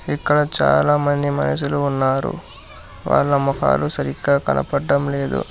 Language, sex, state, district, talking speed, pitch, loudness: Telugu, male, Telangana, Hyderabad, 100 wpm, 135 Hz, -19 LUFS